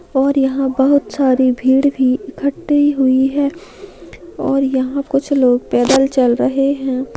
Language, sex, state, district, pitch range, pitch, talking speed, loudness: Hindi, female, Maharashtra, Nagpur, 260-280 Hz, 270 Hz, 140 wpm, -15 LUFS